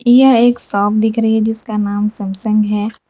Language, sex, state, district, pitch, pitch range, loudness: Hindi, female, Gujarat, Valsad, 220 Hz, 210-225 Hz, -14 LUFS